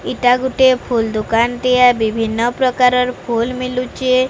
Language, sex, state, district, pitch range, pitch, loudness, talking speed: Odia, female, Odisha, Sambalpur, 230-255 Hz, 250 Hz, -15 LUFS, 110 wpm